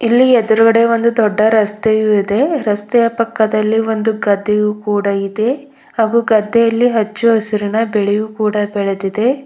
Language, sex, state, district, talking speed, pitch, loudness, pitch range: Kannada, female, Karnataka, Bidar, 120 wpm, 220 Hz, -14 LUFS, 210-230 Hz